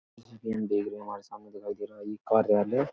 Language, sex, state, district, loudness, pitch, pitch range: Hindi, male, Uttar Pradesh, Etah, -30 LUFS, 105 Hz, 105-110 Hz